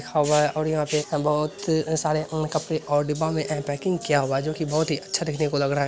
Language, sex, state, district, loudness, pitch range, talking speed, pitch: Hindi, male, Bihar, Lakhisarai, -24 LUFS, 150-155 Hz, 255 wpm, 155 Hz